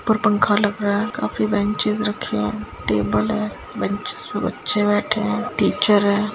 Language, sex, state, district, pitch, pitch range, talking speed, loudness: Hindi, female, Chhattisgarh, Kabirdham, 205 Hz, 200-210 Hz, 160 wpm, -21 LUFS